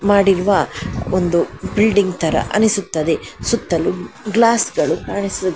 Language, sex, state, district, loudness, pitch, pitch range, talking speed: Kannada, female, Karnataka, Dakshina Kannada, -17 LUFS, 200 Hz, 185-210 Hz, 95 wpm